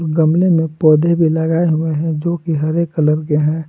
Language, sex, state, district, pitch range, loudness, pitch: Hindi, male, Jharkhand, Palamu, 155-170 Hz, -15 LUFS, 160 Hz